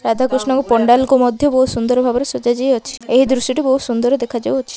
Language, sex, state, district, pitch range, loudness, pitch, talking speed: Odia, female, Odisha, Malkangiri, 240-265 Hz, -15 LUFS, 260 Hz, 200 wpm